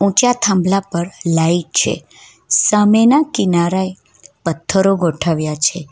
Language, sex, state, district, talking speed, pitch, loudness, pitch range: Gujarati, female, Gujarat, Valsad, 110 wpm, 180 Hz, -15 LUFS, 165-195 Hz